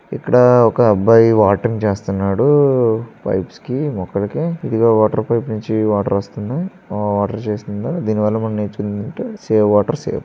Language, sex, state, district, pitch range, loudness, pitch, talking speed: Telugu, male, Andhra Pradesh, Srikakulam, 105-125 Hz, -16 LUFS, 110 Hz, 135 wpm